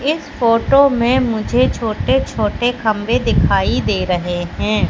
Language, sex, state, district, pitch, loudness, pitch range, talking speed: Hindi, female, Madhya Pradesh, Katni, 230 Hz, -16 LUFS, 180-260 Hz, 120 wpm